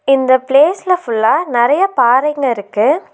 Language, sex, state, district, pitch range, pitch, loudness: Tamil, female, Tamil Nadu, Nilgiris, 240-300 Hz, 270 Hz, -13 LUFS